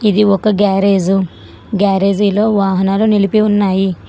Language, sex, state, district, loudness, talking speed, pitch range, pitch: Telugu, female, Telangana, Hyderabad, -13 LUFS, 115 wpm, 195-210 Hz, 200 Hz